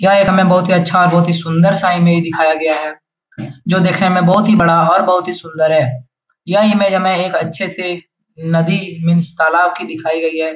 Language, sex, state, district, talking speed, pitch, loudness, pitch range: Hindi, male, Bihar, Jahanabad, 220 wpm, 175 Hz, -13 LUFS, 165-185 Hz